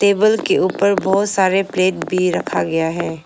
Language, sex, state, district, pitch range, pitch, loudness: Hindi, female, Arunachal Pradesh, Longding, 180-200 Hz, 190 Hz, -17 LUFS